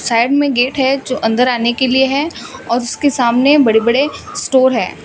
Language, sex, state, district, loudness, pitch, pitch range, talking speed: Hindi, female, Rajasthan, Bikaner, -14 LUFS, 260 Hz, 240-275 Hz, 190 wpm